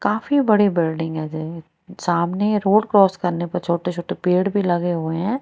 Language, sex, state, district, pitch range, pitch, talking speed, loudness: Hindi, female, Haryana, Rohtak, 170-205 Hz, 180 Hz, 190 wpm, -20 LUFS